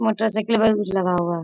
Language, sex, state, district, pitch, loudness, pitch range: Hindi, female, Bihar, Bhagalpur, 215 Hz, -20 LUFS, 185-220 Hz